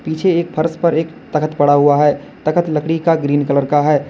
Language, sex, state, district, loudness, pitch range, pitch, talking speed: Hindi, male, Uttar Pradesh, Lalitpur, -15 LUFS, 145-165 Hz, 155 Hz, 235 wpm